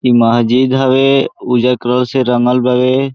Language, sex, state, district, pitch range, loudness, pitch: Bhojpuri, male, Bihar, Saran, 125-130 Hz, -12 LUFS, 125 Hz